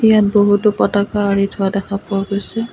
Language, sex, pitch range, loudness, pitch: Assamese, female, 200-210 Hz, -16 LUFS, 200 Hz